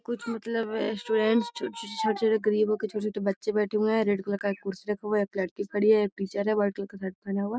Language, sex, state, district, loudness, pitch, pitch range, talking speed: Magahi, female, Bihar, Gaya, -28 LUFS, 210 Hz, 200-220 Hz, 270 wpm